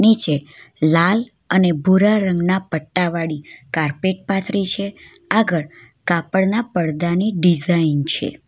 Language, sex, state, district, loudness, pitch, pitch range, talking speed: Gujarati, female, Gujarat, Valsad, -17 LUFS, 180 Hz, 160-195 Hz, 105 wpm